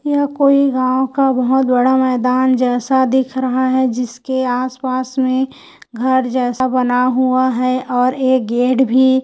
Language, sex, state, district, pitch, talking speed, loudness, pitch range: Hindi, female, Chhattisgarh, Korba, 255 Hz, 150 wpm, -15 LUFS, 250-260 Hz